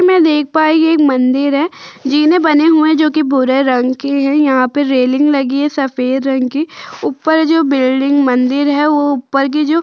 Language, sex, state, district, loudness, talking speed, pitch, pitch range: Hindi, female, Uttar Pradesh, Budaun, -12 LUFS, 215 wpm, 285 Hz, 265-310 Hz